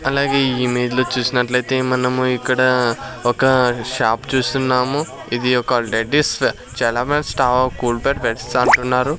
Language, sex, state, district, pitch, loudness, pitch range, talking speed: Telugu, male, Andhra Pradesh, Sri Satya Sai, 125 Hz, -18 LUFS, 125-130 Hz, 115 wpm